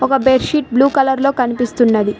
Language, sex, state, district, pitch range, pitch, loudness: Telugu, female, Telangana, Mahabubabad, 245-270 Hz, 265 Hz, -14 LUFS